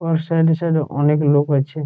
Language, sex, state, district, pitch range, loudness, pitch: Bengali, male, West Bengal, Jhargram, 145-165 Hz, -17 LUFS, 150 Hz